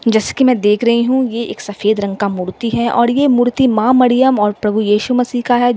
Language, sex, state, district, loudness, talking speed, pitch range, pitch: Hindi, female, Delhi, New Delhi, -14 LUFS, 250 wpm, 210-250 Hz, 235 Hz